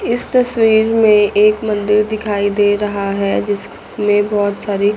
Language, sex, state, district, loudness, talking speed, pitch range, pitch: Hindi, female, Chandigarh, Chandigarh, -15 LUFS, 145 wpm, 205-215 Hz, 210 Hz